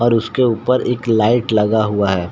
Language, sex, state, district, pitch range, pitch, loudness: Hindi, male, Bihar, Saran, 105-120 Hz, 115 Hz, -16 LUFS